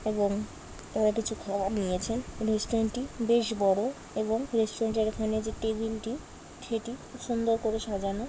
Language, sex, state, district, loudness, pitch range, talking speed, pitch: Bengali, female, West Bengal, Jalpaiguri, -30 LUFS, 215-230 Hz, 145 wpm, 220 Hz